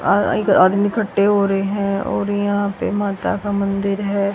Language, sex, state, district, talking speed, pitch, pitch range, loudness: Hindi, female, Haryana, Rohtak, 165 wpm, 200 Hz, 200-205 Hz, -18 LUFS